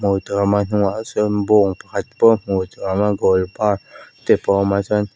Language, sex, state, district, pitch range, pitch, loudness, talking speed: Mizo, female, Mizoram, Aizawl, 100-105 Hz, 100 Hz, -18 LUFS, 140 wpm